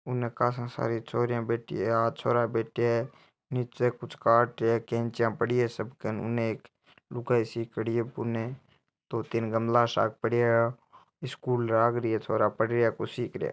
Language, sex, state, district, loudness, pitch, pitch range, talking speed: Marwari, male, Rajasthan, Nagaur, -28 LUFS, 115 Hz, 115-120 Hz, 190 wpm